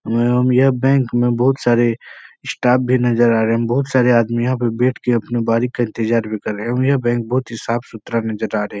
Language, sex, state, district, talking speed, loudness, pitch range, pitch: Hindi, male, Uttar Pradesh, Etah, 245 wpm, -17 LUFS, 115-125 Hz, 120 Hz